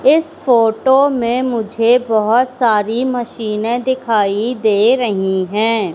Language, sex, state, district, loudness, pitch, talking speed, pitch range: Hindi, female, Madhya Pradesh, Katni, -15 LUFS, 235 Hz, 110 wpm, 220-250 Hz